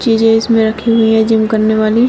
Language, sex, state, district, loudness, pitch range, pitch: Hindi, female, Uttar Pradesh, Shamli, -11 LUFS, 220-225 Hz, 225 Hz